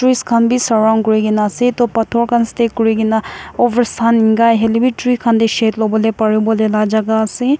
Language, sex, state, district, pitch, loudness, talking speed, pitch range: Nagamese, female, Nagaland, Kohima, 225 Hz, -14 LUFS, 235 wpm, 220-235 Hz